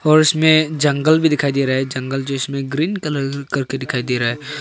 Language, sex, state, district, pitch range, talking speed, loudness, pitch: Hindi, male, Arunachal Pradesh, Longding, 135-155 Hz, 235 wpm, -18 LUFS, 140 Hz